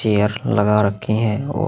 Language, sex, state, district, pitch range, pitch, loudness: Hindi, male, Chhattisgarh, Sukma, 105-110 Hz, 105 Hz, -18 LUFS